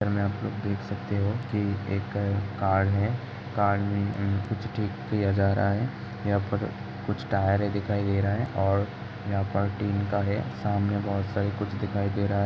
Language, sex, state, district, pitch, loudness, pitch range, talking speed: Hindi, male, Uttar Pradesh, Hamirpur, 100 Hz, -28 LUFS, 100-105 Hz, 200 wpm